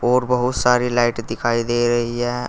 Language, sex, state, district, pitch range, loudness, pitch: Hindi, male, Uttar Pradesh, Saharanpur, 120-125 Hz, -19 LUFS, 120 Hz